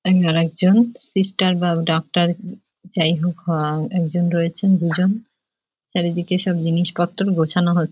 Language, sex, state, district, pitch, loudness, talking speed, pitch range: Bengali, female, West Bengal, Jhargram, 175 Hz, -19 LUFS, 135 wpm, 170-185 Hz